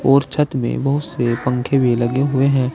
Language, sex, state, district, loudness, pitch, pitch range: Hindi, male, Uttar Pradesh, Saharanpur, -18 LUFS, 135 Hz, 125-140 Hz